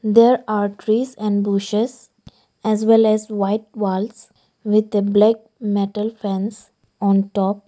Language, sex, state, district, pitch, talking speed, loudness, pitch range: English, female, Arunachal Pradesh, Lower Dibang Valley, 210 Hz, 135 wpm, -19 LUFS, 200-220 Hz